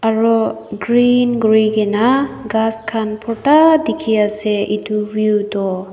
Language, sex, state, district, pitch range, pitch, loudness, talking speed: Nagamese, female, Nagaland, Dimapur, 210-235 Hz, 220 Hz, -15 LUFS, 120 wpm